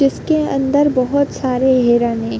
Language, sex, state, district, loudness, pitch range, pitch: Hindi, female, Uttar Pradesh, Gorakhpur, -15 LUFS, 250-285 Hz, 265 Hz